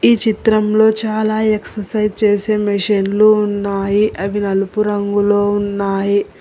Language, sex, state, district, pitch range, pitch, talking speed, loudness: Telugu, female, Telangana, Hyderabad, 200-215 Hz, 205 Hz, 105 wpm, -15 LUFS